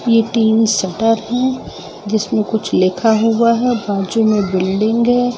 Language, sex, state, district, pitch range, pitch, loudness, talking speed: Hindi, female, Jharkhand, Sahebganj, 210-230 Hz, 225 Hz, -15 LUFS, 145 wpm